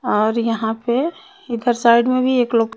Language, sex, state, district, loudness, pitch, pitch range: Hindi, female, Bihar, Patna, -18 LUFS, 235 Hz, 230-255 Hz